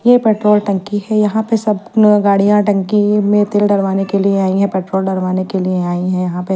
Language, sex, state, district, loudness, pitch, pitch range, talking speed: Hindi, female, Delhi, New Delhi, -14 LUFS, 200 Hz, 190-210 Hz, 230 wpm